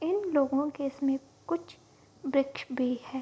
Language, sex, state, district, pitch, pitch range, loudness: Hindi, female, Bihar, Kishanganj, 275 Hz, 270-295 Hz, -31 LUFS